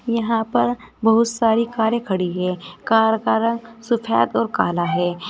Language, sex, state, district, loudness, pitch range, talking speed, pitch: Hindi, female, Uttar Pradesh, Saharanpur, -20 LUFS, 175-230 Hz, 160 wpm, 220 Hz